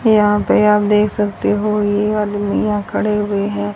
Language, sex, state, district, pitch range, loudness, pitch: Hindi, female, Haryana, Rohtak, 205-210 Hz, -16 LUFS, 210 Hz